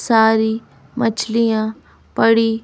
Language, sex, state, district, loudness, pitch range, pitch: Hindi, female, Madhya Pradesh, Bhopal, -17 LUFS, 220-230 Hz, 225 Hz